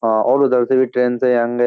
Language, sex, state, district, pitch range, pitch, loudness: Hindi, male, Uttar Pradesh, Jyotiba Phule Nagar, 120-130 Hz, 125 Hz, -16 LUFS